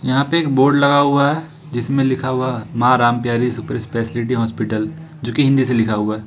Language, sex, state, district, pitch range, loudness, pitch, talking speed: Hindi, male, Jharkhand, Ranchi, 120-140 Hz, -17 LUFS, 130 Hz, 210 wpm